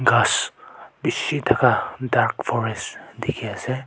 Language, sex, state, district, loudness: Nagamese, male, Nagaland, Kohima, -22 LUFS